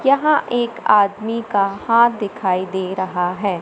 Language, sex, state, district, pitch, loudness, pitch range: Hindi, male, Madhya Pradesh, Katni, 205 Hz, -18 LUFS, 190-235 Hz